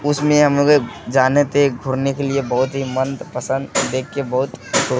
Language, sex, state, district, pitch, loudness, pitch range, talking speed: Hindi, male, Bihar, Kishanganj, 135 Hz, -18 LUFS, 130-140 Hz, 205 wpm